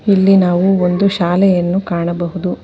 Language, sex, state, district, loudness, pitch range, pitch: Kannada, female, Karnataka, Bangalore, -14 LUFS, 175-195 Hz, 180 Hz